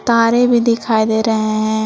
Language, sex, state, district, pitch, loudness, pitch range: Hindi, female, Jharkhand, Palamu, 225 Hz, -14 LUFS, 220-235 Hz